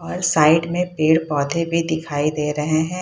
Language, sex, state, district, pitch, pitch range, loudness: Hindi, female, Bihar, Purnia, 160 Hz, 150-170 Hz, -19 LUFS